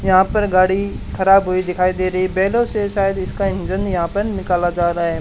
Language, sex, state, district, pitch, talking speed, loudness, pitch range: Hindi, male, Haryana, Charkhi Dadri, 190 Hz, 220 wpm, -17 LUFS, 185-195 Hz